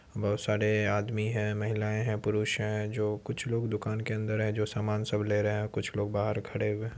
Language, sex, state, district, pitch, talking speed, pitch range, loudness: Hindi, male, Bihar, Supaul, 105 Hz, 240 wpm, 105-110 Hz, -31 LUFS